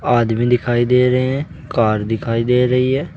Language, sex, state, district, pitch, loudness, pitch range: Hindi, male, Uttar Pradesh, Saharanpur, 125 Hz, -16 LUFS, 115-130 Hz